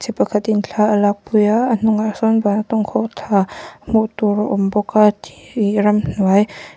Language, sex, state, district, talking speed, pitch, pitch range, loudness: Mizo, female, Mizoram, Aizawl, 170 wpm, 210 Hz, 205-220 Hz, -17 LUFS